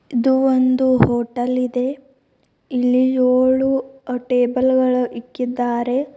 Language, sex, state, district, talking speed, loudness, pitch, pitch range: Kannada, female, Karnataka, Bidar, 85 wpm, -18 LUFS, 255 Hz, 250-260 Hz